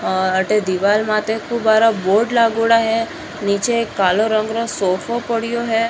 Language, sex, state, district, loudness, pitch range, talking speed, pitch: Marwari, female, Rajasthan, Churu, -17 LUFS, 200-230 Hz, 165 wpm, 220 Hz